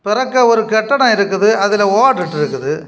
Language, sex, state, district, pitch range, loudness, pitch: Tamil, male, Tamil Nadu, Kanyakumari, 200-240 Hz, -13 LUFS, 215 Hz